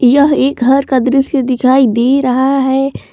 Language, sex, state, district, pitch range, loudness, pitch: Hindi, female, Jharkhand, Palamu, 255-275 Hz, -11 LUFS, 265 Hz